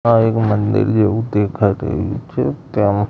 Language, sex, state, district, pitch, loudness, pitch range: Gujarati, male, Gujarat, Gandhinagar, 110 Hz, -17 LUFS, 105-115 Hz